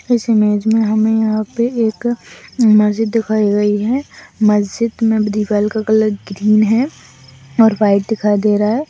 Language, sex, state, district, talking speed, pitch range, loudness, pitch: Hindi, female, Chhattisgarh, Kabirdham, 160 wpm, 210-225 Hz, -15 LUFS, 215 Hz